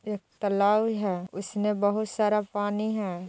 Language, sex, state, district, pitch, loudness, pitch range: Hindi, female, Bihar, Jahanabad, 205 Hz, -27 LUFS, 200-215 Hz